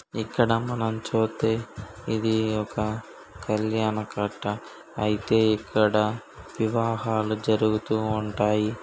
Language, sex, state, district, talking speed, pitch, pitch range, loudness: Telugu, male, Andhra Pradesh, Srikakulam, 80 wpm, 110 Hz, 105-110 Hz, -26 LUFS